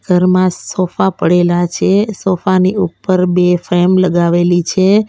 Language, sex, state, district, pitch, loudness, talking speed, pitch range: Gujarati, female, Gujarat, Valsad, 180 Hz, -13 LUFS, 130 wpm, 175-185 Hz